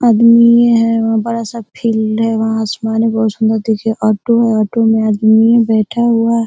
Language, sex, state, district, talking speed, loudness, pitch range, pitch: Hindi, female, Bihar, Araria, 175 wpm, -12 LUFS, 220-230 Hz, 225 Hz